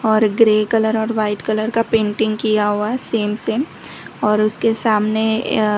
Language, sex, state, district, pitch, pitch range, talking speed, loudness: Hindi, female, Gujarat, Valsad, 220 Hz, 215-225 Hz, 165 wpm, -18 LUFS